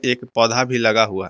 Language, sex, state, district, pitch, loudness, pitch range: Hindi, male, Jharkhand, Garhwa, 115 Hz, -17 LUFS, 110-125 Hz